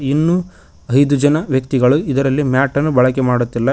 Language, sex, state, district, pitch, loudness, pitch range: Kannada, male, Karnataka, Koppal, 135 Hz, -15 LUFS, 130-145 Hz